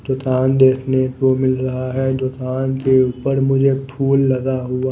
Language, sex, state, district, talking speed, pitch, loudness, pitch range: Hindi, male, Odisha, Nuapada, 160 wpm, 130 Hz, -17 LUFS, 130-135 Hz